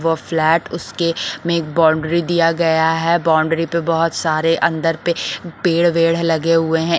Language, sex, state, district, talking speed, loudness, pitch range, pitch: Hindi, female, Bihar, Patna, 170 wpm, -17 LUFS, 160-170 Hz, 165 Hz